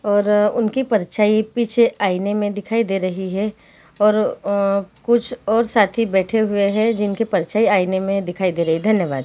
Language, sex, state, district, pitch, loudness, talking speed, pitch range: Hindi, female, Chhattisgarh, Bilaspur, 205 Hz, -19 LUFS, 175 wpm, 195-220 Hz